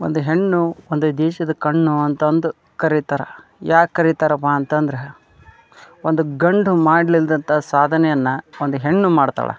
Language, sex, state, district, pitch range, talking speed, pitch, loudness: Kannada, male, Karnataka, Dharwad, 150-165 Hz, 120 wpm, 155 Hz, -17 LUFS